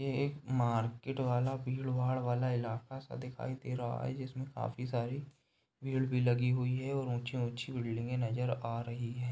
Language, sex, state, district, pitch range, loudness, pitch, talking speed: Hindi, male, Uttar Pradesh, Ghazipur, 120-130 Hz, -36 LUFS, 125 Hz, 175 wpm